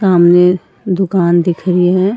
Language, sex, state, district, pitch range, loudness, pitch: Hindi, female, Uttar Pradesh, Varanasi, 175-190 Hz, -12 LUFS, 180 Hz